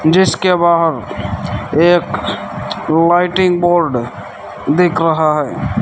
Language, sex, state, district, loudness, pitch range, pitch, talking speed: Hindi, male, Rajasthan, Bikaner, -14 LUFS, 150-175 Hz, 165 Hz, 80 wpm